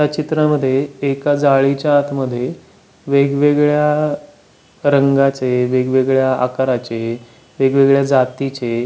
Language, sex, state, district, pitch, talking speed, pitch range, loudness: Marathi, male, Maharashtra, Pune, 135 Hz, 80 wpm, 130-145 Hz, -16 LUFS